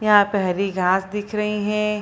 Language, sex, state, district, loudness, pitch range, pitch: Hindi, female, Bihar, Purnia, -21 LUFS, 195-210 Hz, 205 Hz